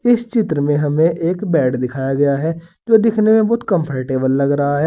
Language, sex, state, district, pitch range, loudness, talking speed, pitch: Hindi, male, Uttar Pradesh, Saharanpur, 140-215 Hz, -16 LUFS, 210 wpm, 160 Hz